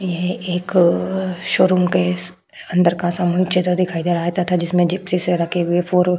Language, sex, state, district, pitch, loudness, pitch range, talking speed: Hindi, female, Uttar Pradesh, Budaun, 180 Hz, -18 LUFS, 175-180 Hz, 205 wpm